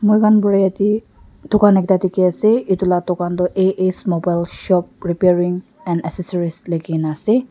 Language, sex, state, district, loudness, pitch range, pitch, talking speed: Nagamese, female, Nagaland, Dimapur, -17 LUFS, 175-200 Hz, 185 Hz, 160 wpm